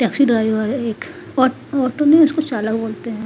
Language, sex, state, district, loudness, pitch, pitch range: Hindi, female, Uttar Pradesh, Hamirpur, -17 LUFS, 245 Hz, 225-280 Hz